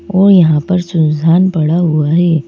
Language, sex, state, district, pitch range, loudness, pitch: Hindi, female, Madhya Pradesh, Bhopal, 155-180 Hz, -11 LUFS, 170 Hz